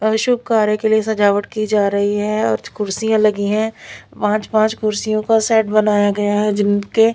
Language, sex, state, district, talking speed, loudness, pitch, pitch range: Hindi, female, Bihar, Patna, 175 wpm, -17 LUFS, 215 Hz, 205-220 Hz